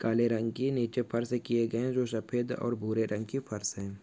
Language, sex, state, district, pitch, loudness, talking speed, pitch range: Hindi, male, Maharashtra, Pune, 115 Hz, -32 LUFS, 240 wpm, 110-125 Hz